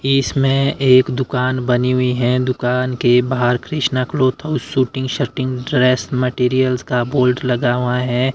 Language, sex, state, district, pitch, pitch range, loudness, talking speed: Hindi, male, Himachal Pradesh, Shimla, 130 Hz, 125-130 Hz, -17 LUFS, 150 wpm